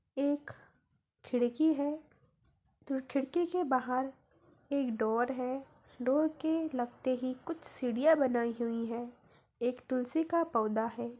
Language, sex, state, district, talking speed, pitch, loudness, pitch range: Hindi, female, Bihar, Gaya, 130 wpm, 260 Hz, -33 LUFS, 240-290 Hz